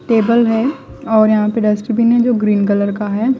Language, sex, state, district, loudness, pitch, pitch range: Hindi, female, Chhattisgarh, Raipur, -14 LUFS, 220 Hz, 210-235 Hz